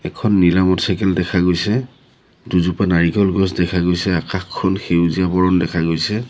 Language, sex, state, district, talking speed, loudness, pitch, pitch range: Assamese, male, Assam, Sonitpur, 145 wpm, -17 LUFS, 90 Hz, 90-95 Hz